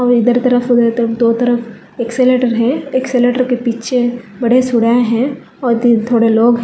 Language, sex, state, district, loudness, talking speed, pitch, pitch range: Hindi, female, Telangana, Hyderabad, -13 LUFS, 170 wpm, 240 Hz, 235-250 Hz